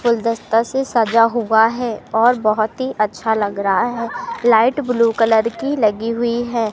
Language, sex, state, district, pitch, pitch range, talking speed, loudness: Hindi, male, Madhya Pradesh, Katni, 230 Hz, 220-240 Hz, 170 wpm, -17 LUFS